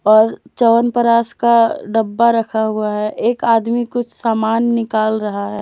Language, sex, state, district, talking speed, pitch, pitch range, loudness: Hindi, female, Jharkhand, Deoghar, 150 wpm, 225 Hz, 220-235 Hz, -16 LUFS